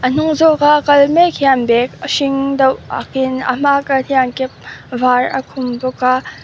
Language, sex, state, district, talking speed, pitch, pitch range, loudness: Mizo, female, Mizoram, Aizawl, 215 wpm, 265 Hz, 255-285 Hz, -14 LUFS